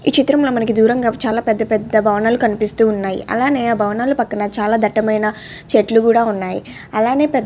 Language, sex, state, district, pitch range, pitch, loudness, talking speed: Telugu, female, Andhra Pradesh, Krishna, 215-240 Hz, 225 Hz, -16 LUFS, 170 wpm